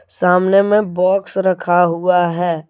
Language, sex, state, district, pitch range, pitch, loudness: Hindi, male, Jharkhand, Deoghar, 175-190 Hz, 180 Hz, -15 LUFS